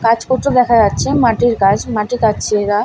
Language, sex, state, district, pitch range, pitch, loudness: Bengali, female, West Bengal, Paschim Medinipur, 210-245 Hz, 230 Hz, -14 LUFS